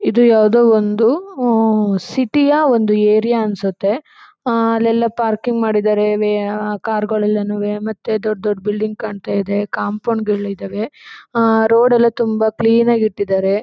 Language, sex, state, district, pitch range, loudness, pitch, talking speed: Kannada, female, Karnataka, Chamarajanagar, 210-230 Hz, -16 LUFS, 220 Hz, 145 wpm